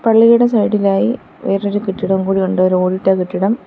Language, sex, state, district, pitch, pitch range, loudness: Malayalam, female, Kerala, Kollam, 195 Hz, 190-220 Hz, -15 LUFS